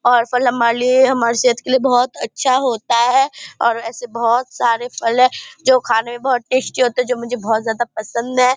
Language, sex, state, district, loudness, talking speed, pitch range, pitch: Hindi, female, Bihar, Purnia, -16 LUFS, 215 wpm, 235-255 Hz, 245 Hz